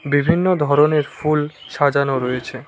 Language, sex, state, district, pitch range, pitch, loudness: Bengali, male, West Bengal, Cooch Behar, 140-150 Hz, 145 Hz, -18 LUFS